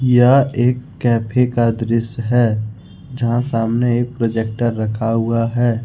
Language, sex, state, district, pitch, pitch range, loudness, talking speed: Hindi, male, Jharkhand, Ranchi, 115 Hz, 115-120 Hz, -17 LUFS, 135 wpm